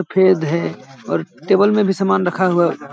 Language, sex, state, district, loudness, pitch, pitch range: Hindi, male, Chhattisgarh, Balrampur, -17 LUFS, 185 Hz, 170-190 Hz